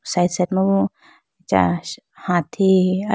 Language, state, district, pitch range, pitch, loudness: Idu Mishmi, Arunachal Pradesh, Lower Dibang Valley, 160-190 Hz, 180 Hz, -19 LUFS